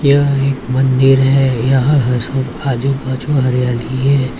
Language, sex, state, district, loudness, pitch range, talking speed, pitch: Hindi, male, Maharashtra, Mumbai Suburban, -14 LUFS, 130-135 Hz, 135 wpm, 135 Hz